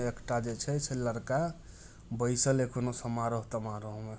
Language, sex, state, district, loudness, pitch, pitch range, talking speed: Hindi, male, Bihar, Muzaffarpur, -33 LUFS, 120 Hz, 115-125 Hz, 145 wpm